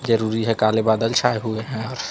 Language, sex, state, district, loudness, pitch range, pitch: Hindi, male, Chhattisgarh, Raipur, -21 LUFS, 110-115 Hz, 110 Hz